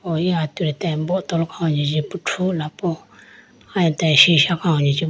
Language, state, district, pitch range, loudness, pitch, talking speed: Idu Mishmi, Arunachal Pradesh, Lower Dibang Valley, 155-175 Hz, -19 LUFS, 165 Hz, 155 wpm